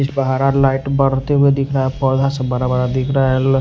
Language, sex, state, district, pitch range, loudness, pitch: Hindi, male, Maharashtra, Washim, 130-135 Hz, -16 LUFS, 135 Hz